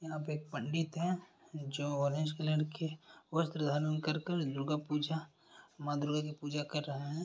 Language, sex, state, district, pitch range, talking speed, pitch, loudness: Hindi, male, Bihar, Bhagalpur, 145-160 Hz, 180 wpm, 150 Hz, -37 LUFS